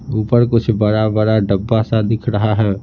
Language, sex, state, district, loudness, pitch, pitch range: Hindi, male, Bihar, Patna, -15 LUFS, 110 Hz, 105-115 Hz